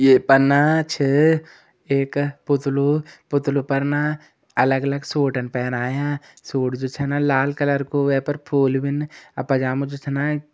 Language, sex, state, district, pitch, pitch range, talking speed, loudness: Garhwali, male, Uttarakhand, Uttarkashi, 140 Hz, 135-145 Hz, 165 wpm, -21 LUFS